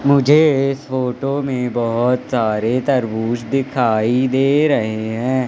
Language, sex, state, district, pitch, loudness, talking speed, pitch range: Hindi, male, Madhya Pradesh, Katni, 130 Hz, -17 LUFS, 110 wpm, 120-135 Hz